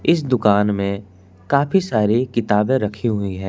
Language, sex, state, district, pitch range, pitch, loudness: Hindi, male, Jharkhand, Palamu, 100-125 Hz, 105 Hz, -18 LUFS